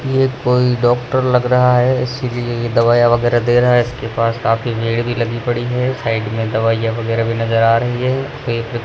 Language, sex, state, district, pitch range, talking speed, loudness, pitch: Hindi, male, Rajasthan, Jaisalmer, 115-125 Hz, 210 wpm, -16 LUFS, 120 Hz